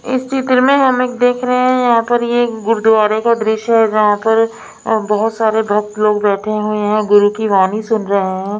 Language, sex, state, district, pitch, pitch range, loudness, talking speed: Hindi, female, Maharashtra, Mumbai Suburban, 220 Hz, 210-240 Hz, -14 LUFS, 215 wpm